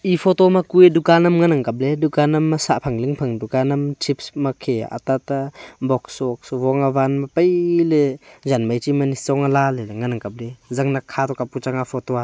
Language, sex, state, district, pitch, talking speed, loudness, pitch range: Wancho, male, Arunachal Pradesh, Longding, 135 Hz, 205 wpm, -19 LUFS, 130-155 Hz